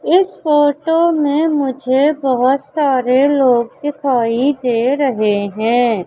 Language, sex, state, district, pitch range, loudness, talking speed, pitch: Hindi, female, Madhya Pradesh, Katni, 245-290 Hz, -15 LUFS, 110 wpm, 270 Hz